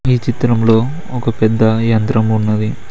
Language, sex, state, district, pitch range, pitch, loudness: Telugu, male, Telangana, Mahabubabad, 110-120 Hz, 115 Hz, -14 LUFS